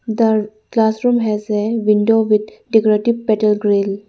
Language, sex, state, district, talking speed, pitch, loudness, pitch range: English, female, Arunachal Pradesh, Lower Dibang Valley, 130 wpm, 215 Hz, -16 LUFS, 210-225 Hz